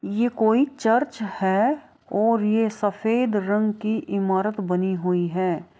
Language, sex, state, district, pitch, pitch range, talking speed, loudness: Hindi, female, Bihar, Kishanganj, 215 Hz, 195-225 Hz, 135 wpm, -23 LUFS